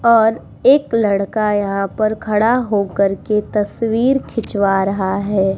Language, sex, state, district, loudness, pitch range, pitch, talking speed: Hindi, female, Bihar, Vaishali, -17 LUFS, 195-230 Hz, 210 Hz, 140 wpm